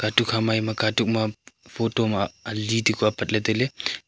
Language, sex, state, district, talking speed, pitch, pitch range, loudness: Wancho, male, Arunachal Pradesh, Longding, 160 wpm, 110 Hz, 110-115 Hz, -24 LUFS